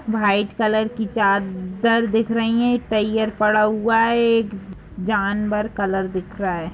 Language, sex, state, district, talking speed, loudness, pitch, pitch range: Hindi, female, Bihar, East Champaran, 150 wpm, -20 LUFS, 215 Hz, 200-225 Hz